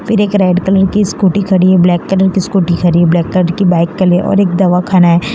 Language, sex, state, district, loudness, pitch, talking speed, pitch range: Hindi, female, Gujarat, Valsad, -11 LUFS, 185 Hz, 270 wpm, 175-195 Hz